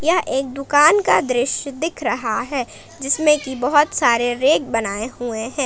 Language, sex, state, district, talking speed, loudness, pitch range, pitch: Hindi, female, Jharkhand, Palamu, 170 wpm, -18 LUFS, 240-295 Hz, 265 Hz